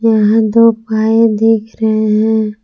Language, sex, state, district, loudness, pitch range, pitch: Hindi, female, Jharkhand, Palamu, -12 LUFS, 215-225 Hz, 220 Hz